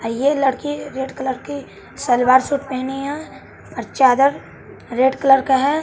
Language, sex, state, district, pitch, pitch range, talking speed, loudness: Hindi, male, Bihar, West Champaran, 270 Hz, 260-285 Hz, 165 wpm, -18 LUFS